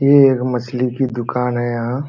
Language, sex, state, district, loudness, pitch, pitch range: Hindi, male, Uttar Pradesh, Jalaun, -17 LUFS, 125 Hz, 120-130 Hz